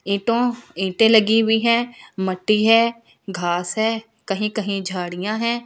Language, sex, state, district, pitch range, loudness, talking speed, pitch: Hindi, female, Delhi, New Delhi, 195-230 Hz, -20 LUFS, 140 wpm, 220 Hz